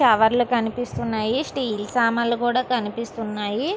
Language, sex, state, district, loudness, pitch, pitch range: Telugu, female, Andhra Pradesh, Guntur, -22 LUFS, 235 Hz, 220-245 Hz